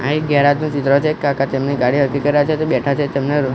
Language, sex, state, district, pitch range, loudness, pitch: Gujarati, male, Gujarat, Gandhinagar, 140-145 Hz, -16 LUFS, 140 Hz